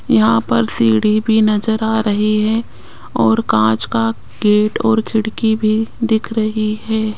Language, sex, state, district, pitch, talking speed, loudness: Hindi, female, Rajasthan, Jaipur, 215 Hz, 150 wpm, -16 LUFS